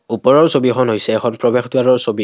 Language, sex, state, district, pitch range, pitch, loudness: Assamese, male, Assam, Kamrup Metropolitan, 115-130 Hz, 125 Hz, -14 LUFS